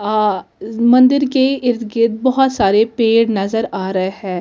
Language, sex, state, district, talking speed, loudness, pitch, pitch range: Hindi, female, Delhi, New Delhi, 205 wpm, -15 LUFS, 225 Hz, 205-250 Hz